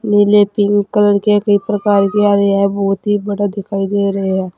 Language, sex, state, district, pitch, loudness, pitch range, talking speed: Hindi, female, Uttar Pradesh, Saharanpur, 205 Hz, -14 LUFS, 200-205 Hz, 225 wpm